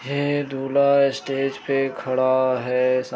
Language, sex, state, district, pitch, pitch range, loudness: Hindi, male, Bihar, Jamui, 135 Hz, 130-140 Hz, -21 LUFS